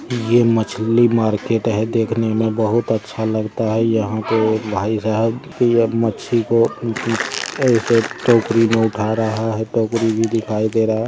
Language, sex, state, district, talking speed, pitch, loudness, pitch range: Maithili, male, Bihar, Samastipur, 150 wpm, 115 Hz, -18 LUFS, 110-115 Hz